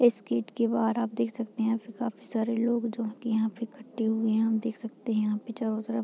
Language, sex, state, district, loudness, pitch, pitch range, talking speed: Hindi, female, Bihar, Muzaffarpur, -30 LUFS, 225 Hz, 220-235 Hz, 260 wpm